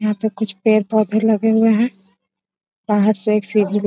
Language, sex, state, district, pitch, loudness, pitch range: Hindi, female, Bihar, Araria, 215 Hz, -17 LUFS, 210-220 Hz